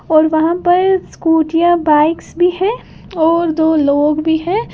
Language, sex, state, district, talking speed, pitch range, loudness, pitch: Hindi, female, Uttar Pradesh, Lalitpur, 150 wpm, 315-350 Hz, -13 LUFS, 325 Hz